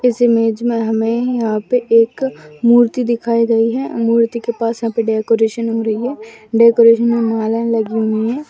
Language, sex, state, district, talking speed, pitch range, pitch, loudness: Hindi, female, Bihar, Jahanabad, 185 wpm, 225-235 Hz, 230 Hz, -15 LUFS